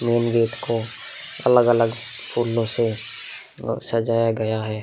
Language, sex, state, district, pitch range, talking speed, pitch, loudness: Hindi, male, Bihar, Vaishali, 115-120 Hz, 125 wpm, 115 Hz, -22 LUFS